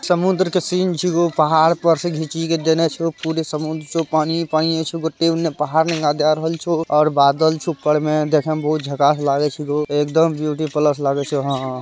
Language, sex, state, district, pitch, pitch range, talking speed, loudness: Hindi, male, Bihar, Araria, 160 Hz, 150-165 Hz, 215 wpm, -18 LUFS